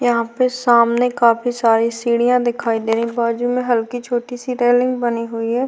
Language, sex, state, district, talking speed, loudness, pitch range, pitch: Hindi, female, Uttarakhand, Tehri Garhwal, 200 wpm, -17 LUFS, 230-245 Hz, 240 Hz